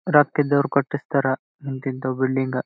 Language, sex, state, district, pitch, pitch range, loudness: Kannada, male, Karnataka, Bijapur, 135 Hz, 130-145 Hz, -22 LUFS